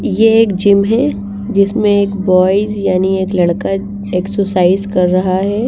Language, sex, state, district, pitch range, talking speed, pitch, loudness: Hindi, female, Bihar, Patna, 185-205 Hz, 150 wpm, 200 Hz, -13 LUFS